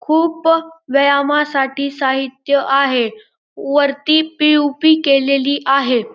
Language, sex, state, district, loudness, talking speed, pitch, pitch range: Marathi, male, Maharashtra, Pune, -15 LUFS, 80 wpm, 280 Hz, 275-310 Hz